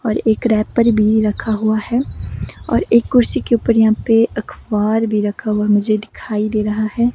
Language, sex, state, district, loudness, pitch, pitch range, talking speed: Hindi, female, Himachal Pradesh, Shimla, -16 LUFS, 215 Hz, 215-230 Hz, 195 wpm